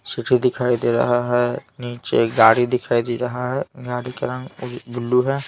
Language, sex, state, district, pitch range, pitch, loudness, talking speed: Hindi, male, Bihar, Patna, 120-125 Hz, 125 Hz, -20 LUFS, 175 wpm